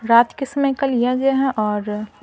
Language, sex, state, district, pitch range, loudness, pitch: Hindi, female, Bihar, Patna, 215-270 Hz, -19 LUFS, 250 Hz